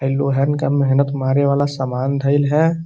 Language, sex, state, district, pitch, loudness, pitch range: Bhojpuri, male, Uttar Pradesh, Gorakhpur, 140 Hz, -17 LUFS, 135-140 Hz